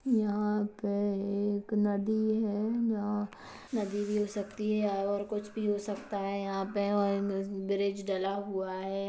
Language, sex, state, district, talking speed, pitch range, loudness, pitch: Hindi, female, Chhattisgarh, Kabirdham, 160 wpm, 200-210 Hz, -32 LUFS, 205 Hz